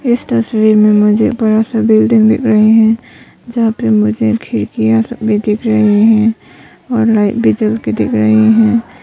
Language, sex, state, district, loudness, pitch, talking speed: Hindi, female, Arunachal Pradesh, Papum Pare, -11 LUFS, 215 Hz, 180 wpm